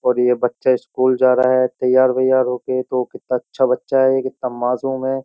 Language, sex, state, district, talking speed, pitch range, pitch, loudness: Hindi, male, Uttar Pradesh, Jyotiba Phule Nagar, 215 wpm, 125-130 Hz, 130 Hz, -17 LUFS